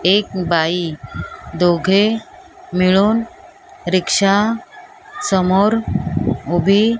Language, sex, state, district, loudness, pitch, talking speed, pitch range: Marathi, female, Maharashtra, Mumbai Suburban, -16 LUFS, 200 Hz, 70 wpm, 180-230 Hz